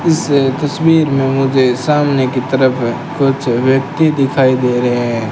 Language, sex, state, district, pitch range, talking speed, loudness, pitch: Hindi, male, Rajasthan, Bikaner, 125-145 Hz, 160 wpm, -13 LUFS, 135 Hz